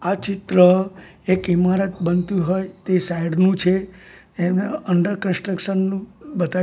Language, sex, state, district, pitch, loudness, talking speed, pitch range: Gujarati, male, Gujarat, Gandhinagar, 185 Hz, -20 LUFS, 135 wpm, 180-195 Hz